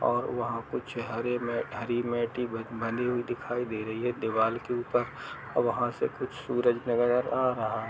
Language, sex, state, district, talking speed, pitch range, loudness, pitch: Hindi, male, Chhattisgarh, Kabirdham, 190 wpm, 115-120 Hz, -30 LUFS, 120 Hz